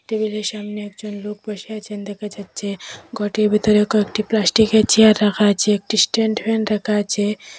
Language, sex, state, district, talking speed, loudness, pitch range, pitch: Bengali, female, Assam, Hailakandi, 160 wpm, -18 LUFS, 205-215 Hz, 210 Hz